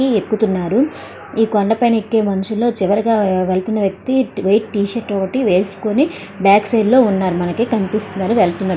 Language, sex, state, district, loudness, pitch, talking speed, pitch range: Telugu, female, Andhra Pradesh, Srikakulam, -16 LUFS, 210 Hz, 155 wpm, 195-230 Hz